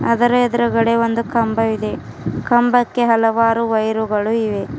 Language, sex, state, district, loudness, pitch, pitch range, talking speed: Kannada, female, Karnataka, Bidar, -17 LUFS, 230 Hz, 220-240 Hz, 100 wpm